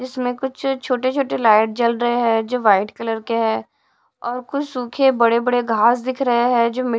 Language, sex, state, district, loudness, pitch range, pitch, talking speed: Hindi, female, Odisha, Sambalpur, -19 LUFS, 230-255 Hz, 240 Hz, 195 wpm